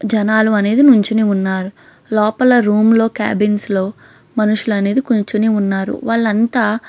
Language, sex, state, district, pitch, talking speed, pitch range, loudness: Telugu, female, Andhra Pradesh, Krishna, 215 Hz, 105 wpm, 210-225 Hz, -15 LUFS